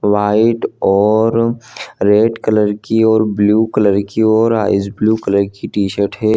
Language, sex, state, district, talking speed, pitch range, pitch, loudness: Hindi, male, Jharkhand, Jamtara, 150 wpm, 100-110 Hz, 105 Hz, -14 LUFS